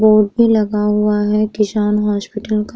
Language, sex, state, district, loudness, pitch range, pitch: Hindi, female, Uttar Pradesh, Muzaffarnagar, -15 LUFS, 210-215 Hz, 210 Hz